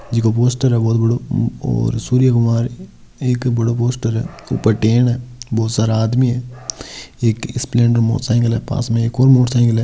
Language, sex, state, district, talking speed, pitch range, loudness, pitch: Marwari, male, Rajasthan, Nagaur, 170 wpm, 115-125 Hz, -17 LUFS, 120 Hz